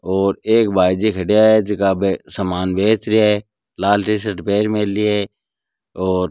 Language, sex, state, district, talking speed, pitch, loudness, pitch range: Marwari, male, Rajasthan, Nagaur, 180 wpm, 105 Hz, -17 LUFS, 95-105 Hz